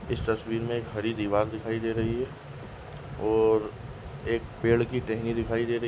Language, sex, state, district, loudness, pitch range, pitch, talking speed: Hindi, male, Goa, North and South Goa, -28 LUFS, 110-120 Hz, 115 Hz, 195 wpm